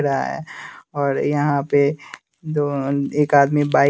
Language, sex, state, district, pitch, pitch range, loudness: Hindi, male, Bihar, West Champaran, 145 Hz, 140-145 Hz, -19 LUFS